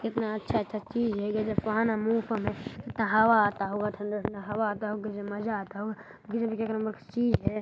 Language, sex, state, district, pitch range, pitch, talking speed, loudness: Hindi, male, Chhattisgarh, Balrampur, 205-225 Hz, 215 Hz, 135 wpm, -30 LUFS